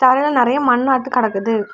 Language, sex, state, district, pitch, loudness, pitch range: Tamil, female, Tamil Nadu, Kanyakumari, 250 Hz, -16 LUFS, 230-260 Hz